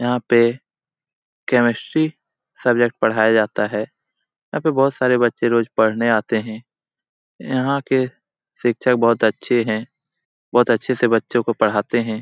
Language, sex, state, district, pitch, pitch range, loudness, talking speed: Hindi, male, Bihar, Lakhisarai, 120 Hz, 110-125 Hz, -19 LUFS, 160 wpm